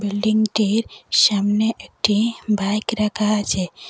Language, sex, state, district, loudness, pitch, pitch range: Bengali, female, Assam, Hailakandi, -19 LUFS, 210 Hz, 205-220 Hz